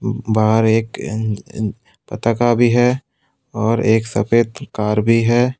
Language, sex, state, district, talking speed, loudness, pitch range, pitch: Hindi, male, Tripura, West Tripura, 140 wpm, -17 LUFS, 110-120 Hz, 115 Hz